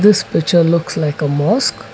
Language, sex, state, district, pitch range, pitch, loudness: English, male, Karnataka, Bangalore, 150-210 Hz, 170 Hz, -15 LUFS